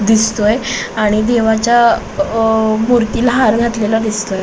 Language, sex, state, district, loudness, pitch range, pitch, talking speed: Marathi, female, Maharashtra, Solapur, -13 LUFS, 215-235 Hz, 225 Hz, 95 wpm